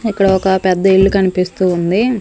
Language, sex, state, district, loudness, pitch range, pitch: Telugu, female, Andhra Pradesh, Manyam, -13 LUFS, 185-195 Hz, 190 Hz